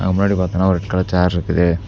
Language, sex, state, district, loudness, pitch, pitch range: Tamil, male, Tamil Nadu, Namakkal, -17 LUFS, 90 Hz, 90-95 Hz